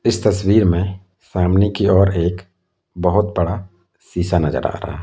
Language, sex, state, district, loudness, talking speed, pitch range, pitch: Hindi, male, Jharkhand, Deoghar, -18 LUFS, 165 wpm, 85-100 Hz, 90 Hz